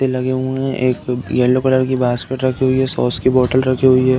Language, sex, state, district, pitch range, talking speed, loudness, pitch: Hindi, male, Uttar Pradesh, Deoria, 125-130 Hz, 245 wpm, -16 LUFS, 130 Hz